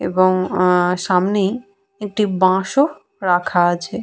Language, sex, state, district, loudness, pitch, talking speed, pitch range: Bengali, female, West Bengal, Purulia, -17 LUFS, 185 Hz, 120 wpm, 180-205 Hz